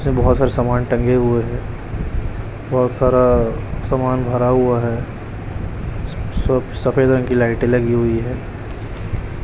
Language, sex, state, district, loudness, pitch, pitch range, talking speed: Hindi, male, Chhattisgarh, Raipur, -18 LUFS, 120 Hz, 110-125 Hz, 140 wpm